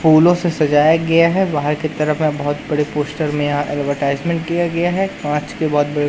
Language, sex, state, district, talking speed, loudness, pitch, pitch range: Hindi, male, Madhya Pradesh, Katni, 225 wpm, -17 LUFS, 150 Hz, 145-165 Hz